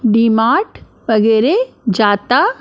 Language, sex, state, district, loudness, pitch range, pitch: Hindi, female, Maharashtra, Mumbai Suburban, -14 LUFS, 220-245 Hz, 225 Hz